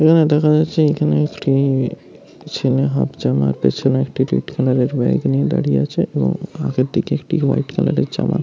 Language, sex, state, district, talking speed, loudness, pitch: Bengali, male, West Bengal, Paschim Medinipur, 215 wpm, -17 LUFS, 135 Hz